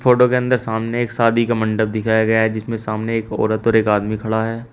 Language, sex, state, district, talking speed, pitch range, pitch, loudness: Hindi, male, Uttar Pradesh, Shamli, 240 wpm, 110-115 Hz, 110 Hz, -18 LUFS